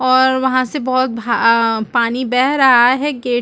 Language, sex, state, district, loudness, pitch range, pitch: Hindi, female, Chhattisgarh, Balrampur, -14 LUFS, 235-260 Hz, 255 Hz